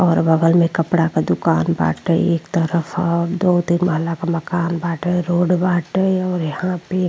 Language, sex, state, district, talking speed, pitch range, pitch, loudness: Bhojpuri, female, Uttar Pradesh, Ghazipur, 185 wpm, 165-180 Hz, 170 Hz, -18 LUFS